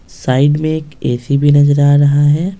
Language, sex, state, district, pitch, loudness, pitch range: Hindi, male, Bihar, Patna, 145 Hz, -12 LUFS, 140-150 Hz